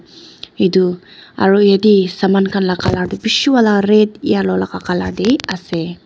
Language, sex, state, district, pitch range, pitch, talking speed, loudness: Nagamese, female, Nagaland, Dimapur, 180-210 Hz, 195 Hz, 160 wpm, -14 LUFS